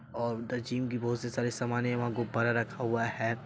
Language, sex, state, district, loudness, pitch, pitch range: Hindi, male, Bihar, Saharsa, -32 LUFS, 120 Hz, 115-120 Hz